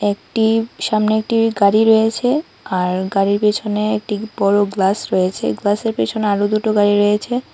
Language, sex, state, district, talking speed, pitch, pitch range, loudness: Bengali, female, Tripura, West Tripura, 145 wpm, 210 Hz, 205-220 Hz, -17 LUFS